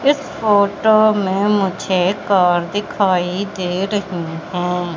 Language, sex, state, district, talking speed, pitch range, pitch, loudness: Hindi, female, Madhya Pradesh, Katni, 110 wpm, 180-205 Hz, 195 Hz, -17 LUFS